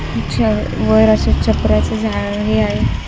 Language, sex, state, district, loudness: Marathi, female, Maharashtra, Washim, -15 LUFS